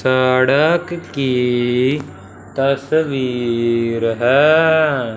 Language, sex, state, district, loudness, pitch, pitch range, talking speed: Hindi, male, Punjab, Fazilka, -16 LUFS, 130 Hz, 120-145 Hz, 45 wpm